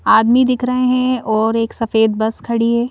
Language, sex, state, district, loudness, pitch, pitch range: Hindi, female, Madhya Pradesh, Bhopal, -16 LUFS, 230 Hz, 220-250 Hz